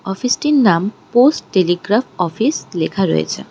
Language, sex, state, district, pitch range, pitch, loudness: Bengali, female, West Bengal, Darjeeling, 180-250 Hz, 205 Hz, -16 LUFS